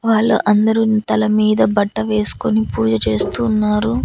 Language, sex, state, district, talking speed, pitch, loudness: Telugu, female, Andhra Pradesh, Annamaya, 135 wpm, 210 Hz, -16 LUFS